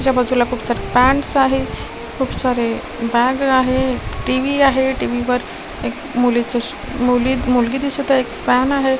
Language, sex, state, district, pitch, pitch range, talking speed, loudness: Marathi, female, Maharashtra, Washim, 255 Hz, 245-265 Hz, 155 wpm, -17 LUFS